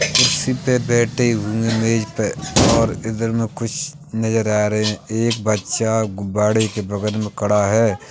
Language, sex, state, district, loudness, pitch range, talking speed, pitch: Hindi, male, Uttar Pradesh, Hamirpur, -19 LUFS, 105-115 Hz, 165 wpm, 110 Hz